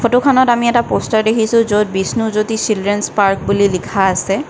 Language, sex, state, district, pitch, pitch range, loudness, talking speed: Assamese, female, Assam, Kamrup Metropolitan, 215 Hz, 200-230 Hz, -14 LUFS, 160 wpm